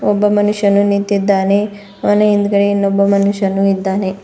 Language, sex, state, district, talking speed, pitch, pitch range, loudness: Kannada, female, Karnataka, Bidar, 115 wpm, 200 Hz, 195-205 Hz, -14 LUFS